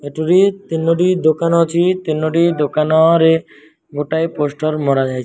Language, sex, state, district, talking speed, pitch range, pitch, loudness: Odia, male, Odisha, Malkangiri, 115 wpm, 155-170 Hz, 160 Hz, -15 LUFS